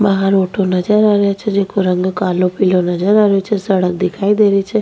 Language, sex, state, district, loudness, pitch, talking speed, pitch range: Rajasthani, female, Rajasthan, Nagaur, -14 LUFS, 195 Hz, 225 wpm, 185-205 Hz